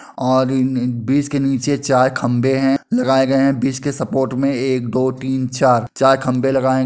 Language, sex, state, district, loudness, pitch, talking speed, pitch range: Hindi, male, Uttar Pradesh, Muzaffarnagar, -17 LUFS, 130 Hz, 220 wpm, 130-135 Hz